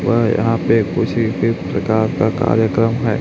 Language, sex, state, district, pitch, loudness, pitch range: Hindi, male, Chhattisgarh, Raipur, 115 Hz, -17 LUFS, 110-115 Hz